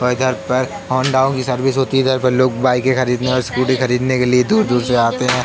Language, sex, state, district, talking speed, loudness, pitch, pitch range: Hindi, male, Uttar Pradesh, Jalaun, 240 wpm, -16 LUFS, 130 Hz, 125-130 Hz